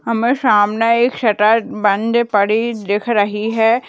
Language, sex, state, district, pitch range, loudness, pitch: Hindi, female, Bihar, Purnia, 210-235 Hz, -15 LUFS, 225 Hz